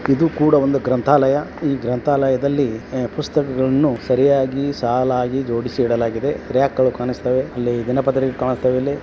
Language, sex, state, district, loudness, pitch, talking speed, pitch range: Kannada, male, Karnataka, Belgaum, -18 LUFS, 130 Hz, 100 wpm, 125-140 Hz